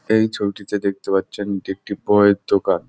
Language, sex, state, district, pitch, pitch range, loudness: Bengali, male, West Bengal, Jhargram, 100 Hz, 100-105 Hz, -20 LUFS